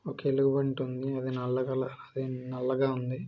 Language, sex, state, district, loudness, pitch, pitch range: Telugu, male, Andhra Pradesh, Srikakulam, -31 LUFS, 130 Hz, 130-135 Hz